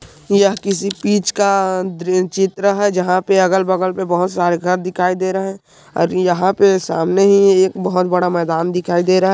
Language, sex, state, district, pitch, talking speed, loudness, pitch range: Hindi, male, Chhattisgarh, Kabirdham, 185 Hz, 200 wpm, -16 LUFS, 180-195 Hz